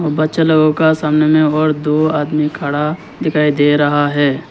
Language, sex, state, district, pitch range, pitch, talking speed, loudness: Hindi, male, Arunachal Pradesh, Lower Dibang Valley, 150-155 Hz, 150 Hz, 175 wpm, -14 LUFS